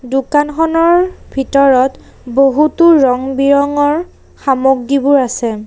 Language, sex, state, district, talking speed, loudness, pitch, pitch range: Assamese, female, Assam, Sonitpur, 75 wpm, -12 LUFS, 275 Hz, 265-300 Hz